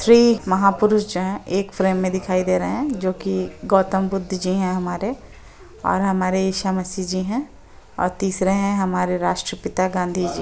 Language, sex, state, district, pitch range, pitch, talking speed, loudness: Hindi, female, Bihar, Muzaffarpur, 185-200 Hz, 190 Hz, 175 wpm, -21 LUFS